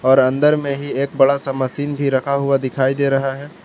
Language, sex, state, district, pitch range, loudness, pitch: Hindi, male, Jharkhand, Palamu, 135-140 Hz, -18 LUFS, 140 Hz